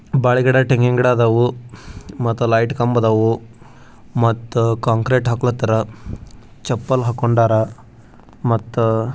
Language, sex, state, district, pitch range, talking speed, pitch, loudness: Kannada, male, Karnataka, Bijapur, 115-125 Hz, 80 wpm, 115 Hz, -17 LUFS